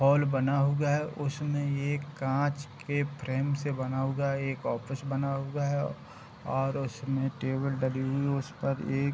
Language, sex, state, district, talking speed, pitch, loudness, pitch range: Hindi, male, Bihar, Darbhanga, 185 wpm, 140 Hz, -31 LUFS, 135-145 Hz